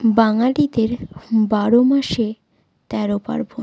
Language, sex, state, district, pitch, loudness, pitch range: Bengali, female, West Bengal, Jalpaiguri, 225 Hz, -18 LUFS, 215-245 Hz